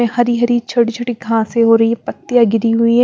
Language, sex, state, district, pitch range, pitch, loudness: Hindi, female, Bihar, West Champaran, 230-240 Hz, 235 Hz, -14 LUFS